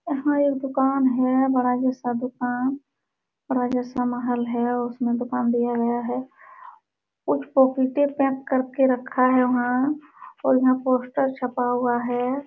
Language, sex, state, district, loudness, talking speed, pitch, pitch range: Hindi, female, Uttar Pradesh, Jalaun, -23 LUFS, 135 wpm, 255 Hz, 245-270 Hz